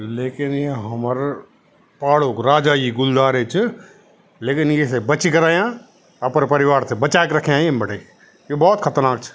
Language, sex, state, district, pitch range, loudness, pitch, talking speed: Garhwali, male, Uttarakhand, Tehri Garhwal, 130-165 Hz, -18 LUFS, 145 Hz, 165 wpm